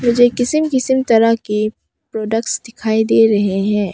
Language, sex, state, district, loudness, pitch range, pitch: Hindi, female, Arunachal Pradesh, Papum Pare, -15 LUFS, 215-245 Hz, 225 Hz